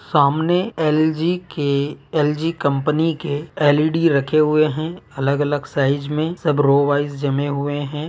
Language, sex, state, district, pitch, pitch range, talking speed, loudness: Hindi, male, Uttar Pradesh, Muzaffarnagar, 150 Hz, 145-160 Hz, 140 wpm, -19 LUFS